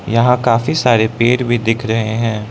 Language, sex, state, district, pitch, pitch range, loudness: Hindi, male, Arunachal Pradesh, Lower Dibang Valley, 115 Hz, 110-125 Hz, -15 LUFS